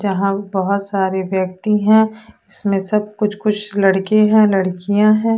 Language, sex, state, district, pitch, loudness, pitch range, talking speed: Hindi, female, Odisha, Sambalpur, 205 Hz, -16 LUFS, 195-215 Hz, 145 wpm